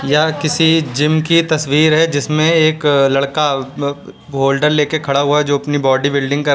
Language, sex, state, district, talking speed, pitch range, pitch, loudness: Hindi, male, Uttar Pradesh, Lucknow, 185 wpm, 140-155 Hz, 150 Hz, -14 LUFS